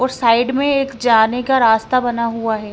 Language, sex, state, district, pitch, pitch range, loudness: Hindi, female, Himachal Pradesh, Shimla, 240 Hz, 230-260 Hz, -16 LUFS